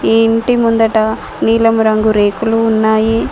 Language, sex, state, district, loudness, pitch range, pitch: Telugu, female, Telangana, Mahabubabad, -12 LUFS, 220-225 Hz, 225 Hz